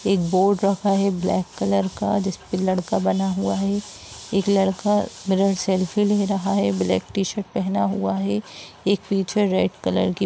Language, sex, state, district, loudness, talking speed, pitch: Hindi, female, Bihar, Sitamarhi, -22 LUFS, 180 wpm, 185 Hz